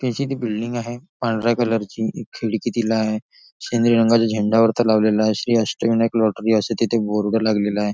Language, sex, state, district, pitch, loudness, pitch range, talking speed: Marathi, male, Maharashtra, Nagpur, 115 Hz, -20 LUFS, 110-115 Hz, 190 wpm